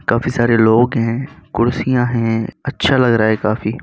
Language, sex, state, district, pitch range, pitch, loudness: Hindi, male, Uttar Pradesh, Muzaffarnagar, 110-125 Hz, 115 Hz, -16 LUFS